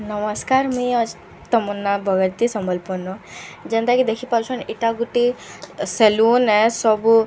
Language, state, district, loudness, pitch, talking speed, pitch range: Sambalpuri, Odisha, Sambalpur, -19 LUFS, 225 Hz, 140 wpm, 210-240 Hz